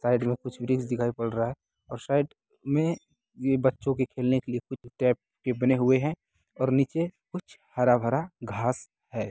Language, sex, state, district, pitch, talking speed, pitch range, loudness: Hindi, male, Bihar, Bhagalpur, 130 Hz, 195 wpm, 120-135 Hz, -28 LUFS